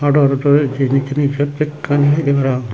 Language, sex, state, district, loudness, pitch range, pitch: Chakma, male, Tripura, Unakoti, -15 LUFS, 135-145 Hz, 145 Hz